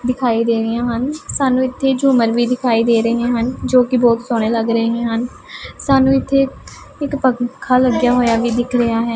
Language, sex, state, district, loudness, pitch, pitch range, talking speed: Punjabi, female, Punjab, Pathankot, -16 LUFS, 245 Hz, 230-260 Hz, 190 wpm